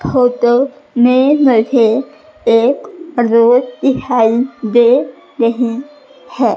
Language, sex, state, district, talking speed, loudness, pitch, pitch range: Hindi, female, Madhya Pradesh, Katni, 80 wpm, -13 LUFS, 250 Hz, 235-280 Hz